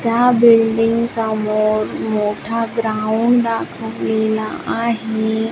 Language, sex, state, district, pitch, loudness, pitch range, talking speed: Marathi, female, Maharashtra, Washim, 225 Hz, -17 LUFS, 215-230 Hz, 75 wpm